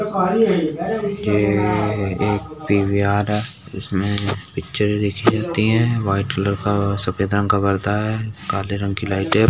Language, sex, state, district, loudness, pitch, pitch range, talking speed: Hindi, male, Uttar Pradesh, Jyotiba Phule Nagar, -20 LUFS, 105 Hz, 100-110 Hz, 140 wpm